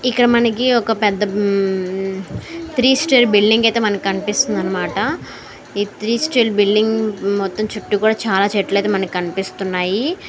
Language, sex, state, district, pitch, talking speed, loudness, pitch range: Telugu, female, Andhra Pradesh, Srikakulam, 210 Hz, 130 wpm, -17 LUFS, 195-230 Hz